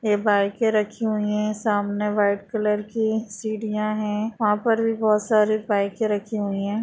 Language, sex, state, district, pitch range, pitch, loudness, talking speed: Hindi, female, Jharkhand, Sahebganj, 210-220 Hz, 210 Hz, -23 LUFS, 175 wpm